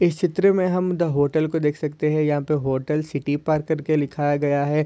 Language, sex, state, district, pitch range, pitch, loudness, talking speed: Hindi, male, Maharashtra, Solapur, 145-160 Hz, 150 Hz, -22 LUFS, 245 wpm